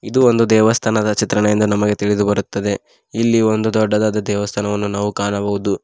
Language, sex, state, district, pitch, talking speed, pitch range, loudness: Kannada, male, Karnataka, Koppal, 105 Hz, 135 wpm, 100-110 Hz, -17 LUFS